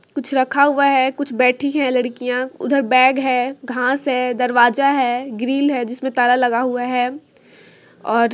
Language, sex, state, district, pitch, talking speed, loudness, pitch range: Hindi, female, Jharkhand, Sahebganj, 255 Hz, 170 wpm, -17 LUFS, 245-275 Hz